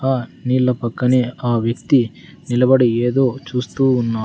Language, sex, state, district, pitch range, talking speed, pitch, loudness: Telugu, male, Andhra Pradesh, Sri Satya Sai, 120-130 Hz, 140 wpm, 125 Hz, -18 LUFS